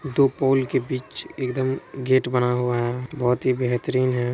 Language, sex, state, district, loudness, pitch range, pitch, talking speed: Hindi, male, Bihar, Supaul, -23 LUFS, 125-130 Hz, 130 Hz, 180 wpm